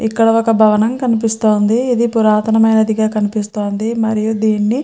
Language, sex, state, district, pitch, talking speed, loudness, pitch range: Telugu, female, Andhra Pradesh, Chittoor, 220 Hz, 135 wpm, -14 LUFS, 215-225 Hz